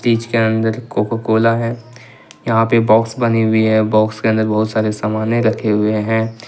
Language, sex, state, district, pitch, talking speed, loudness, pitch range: Hindi, male, Jharkhand, Ranchi, 110 Hz, 195 wpm, -16 LUFS, 110-115 Hz